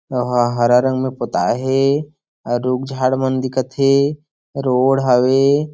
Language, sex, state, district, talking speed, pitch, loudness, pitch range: Chhattisgarhi, male, Chhattisgarh, Sarguja, 145 wpm, 130 Hz, -17 LUFS, 125-135 Hz